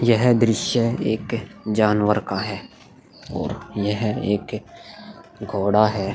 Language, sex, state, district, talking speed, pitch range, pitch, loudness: Hindi, male, Goa, North and South Goa, 100 wpm, 105-115 Hz, 105 Hz, -22 LUFS